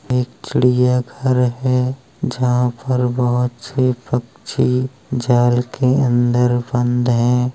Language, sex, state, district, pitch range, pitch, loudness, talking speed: Hindi, male, Uttar Pradesh, Hamirpur, 120-130 Hz, 125 Hz, -18 LUFS, 110 wpm